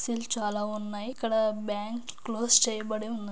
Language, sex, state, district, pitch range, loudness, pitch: Telugu, female, Andhra Pradesh, Anantapur, 210-235 Hz, -28 LUFS, 220 Hz